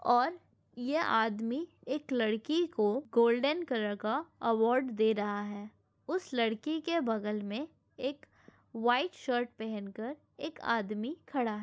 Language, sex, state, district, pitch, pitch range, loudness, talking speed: Hindi, female, Andhra Pradesh, Anantapur, 235 Hz, 220-280 Hz, -33 LUFS, 140 wpm